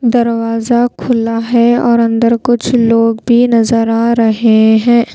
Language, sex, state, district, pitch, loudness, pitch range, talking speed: Hindi, female, Bihar, Patna, 230 Hz, -11 LUFS, 230-240 Hz, 140 wpm